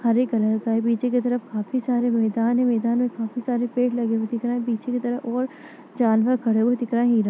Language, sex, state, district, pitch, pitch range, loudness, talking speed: Hindi, female, Chhattisgarh, Bastar, 240 Hz, 230-245 Hz, -23 LUFS, 265 wpm